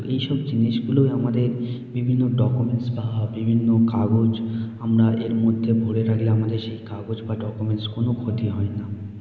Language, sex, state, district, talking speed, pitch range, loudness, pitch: Bengali, male, West Bengal, Malda, 150 wpm, 110-120 Hz, -22 LUFS, 115 Hz